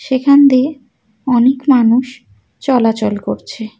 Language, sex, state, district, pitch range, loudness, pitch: Bengali, female, West Bengal, Alipurduar, 215-265 Hz, -13 LUFS, 245 Hz